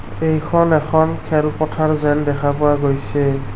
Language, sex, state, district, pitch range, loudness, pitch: Assamese, male, Assam, Kamrup Metropolitan, 145-155 Hz, -17 LUFS, 150 Hz